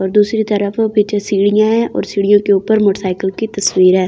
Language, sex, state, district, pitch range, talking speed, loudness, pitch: Hindi, female, Delhi, New Delhi, 195-215 Hz, 190 wpm, -14 LUFS, 205 Hz